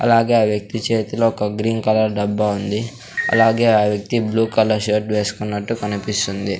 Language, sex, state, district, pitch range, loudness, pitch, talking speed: Telugu, male, Andhra Pradesh, Sri Satya Sai, 105-115 Hz, -18 LUFS, 110 Hz, 155 wpm